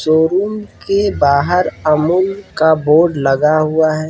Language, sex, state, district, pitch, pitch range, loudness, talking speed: Hindi, male, Bihar, Kishanganj, 160 Hz, 155-185 Hz, -14 LUFS, 145 wpm